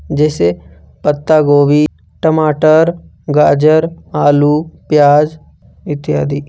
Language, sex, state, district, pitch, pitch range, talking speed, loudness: Hindi, male, Jharkhand, Ranchi, 150 Hz, 145-155 Hz, 65 wpm, -12 LUFS